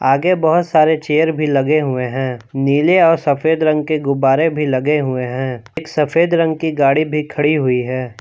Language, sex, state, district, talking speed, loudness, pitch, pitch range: Hindi, male, Jharkhand, Palamu, 195 wpm, -15 LUFS, 150 Hz, 135-160 Hz